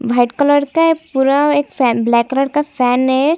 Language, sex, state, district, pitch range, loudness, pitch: Hindi, female, Chhattisgarh, Kabirdham, 245-295 Hz, -14 LUFS, 275 Hz